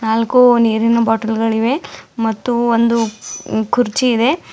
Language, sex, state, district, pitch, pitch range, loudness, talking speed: Kannada, female, Karnataka, Bidar, 230 Hz, 225-240 Hz, -15 LUFS, 105 wpm